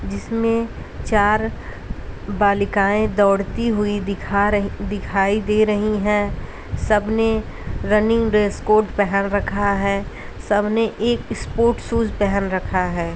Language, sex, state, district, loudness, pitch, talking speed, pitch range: Hindi, female, Uttar Pradesh, Ghazipur, -19 LUFS, 205 Hz, 125 wpm, 200-220 Hz